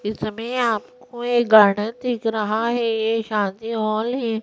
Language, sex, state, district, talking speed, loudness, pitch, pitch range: Hindi, female, Madhya Pradesh, Bhopal, 160 wpm, -21 LUFS, 225 Hz, 215-240 Hz